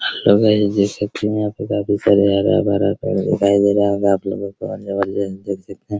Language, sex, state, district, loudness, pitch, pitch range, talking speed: Hindi, male, Bihar, Araria, -18 LUFS, 100 Hz, 100-105 Hz, 200 wpm